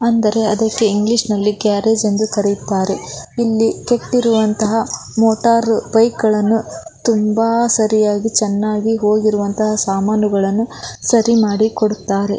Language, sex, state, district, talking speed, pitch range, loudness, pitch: Kannada, female, Karnataka, Belgaum, 90 wpm, 210-225 Hz, -15 LUFS, 220 Hz